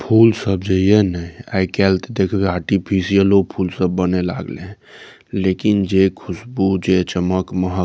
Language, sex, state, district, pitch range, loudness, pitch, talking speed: Maithili, male, Bihar, Saharsa, 90-100 Hz, -17 LUFS, 95 Hz, 175 wpm